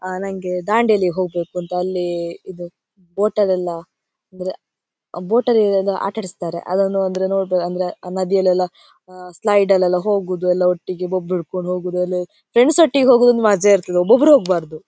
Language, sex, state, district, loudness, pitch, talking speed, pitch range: Kannada, female, Karnataka, Dakshina Kannada, -18 LUFS, 185 Hz, 145 wpm, 180-200 Hz